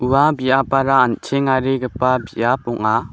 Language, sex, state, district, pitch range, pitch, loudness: Garo, male, Meghalaya, West Garo Hills, 125-135 Hz, 130 Hz, -17 LUFS